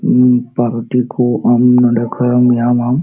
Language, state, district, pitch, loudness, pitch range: Santali, Jharkhand, Sahebganj, 125 Hz, -13 LUFS, 120-125 Hz